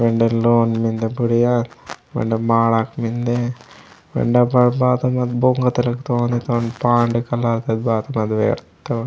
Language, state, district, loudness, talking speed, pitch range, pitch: Gondi, Chhattisgarh, Sukma, -18 LUFS, 125 wpm, 115-120 Hz, 120 Hz